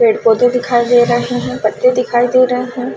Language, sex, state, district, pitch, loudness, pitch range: Hindi, female, Chhattisgarh, Balrampur, 245 Hz, -13 LUFS, 240-250 Hz